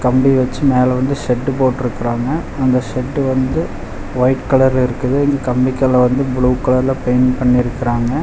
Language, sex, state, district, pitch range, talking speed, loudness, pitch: Tamil, male, Tamil Nadu, Chennai, 125-130 Hz, 140 wpm, -15 LUFS, 130 Hz